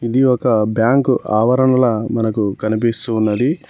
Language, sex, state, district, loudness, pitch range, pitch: Telugu, male, Telangana, Mahabubabad, -16 LUFS, 110-130 Hz, 115 Hz